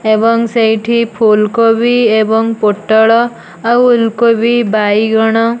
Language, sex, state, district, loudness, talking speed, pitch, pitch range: Odia, female, Odisha, Nuapada, -11 LUFS, 120 wpm, 225 Hz, 220-235 Hz